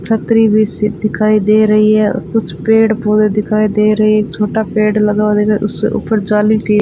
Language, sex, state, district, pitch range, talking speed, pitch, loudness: Hindi, female, Rajasthan, Bikaner, 210-215 Hz, 220 wpm, 215 Hz, -12 LUFS